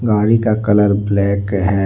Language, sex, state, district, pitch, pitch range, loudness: Hindi, male, Jharkhand, Deoghar, 105 Hz, 100-110 Hz, -15 LUFS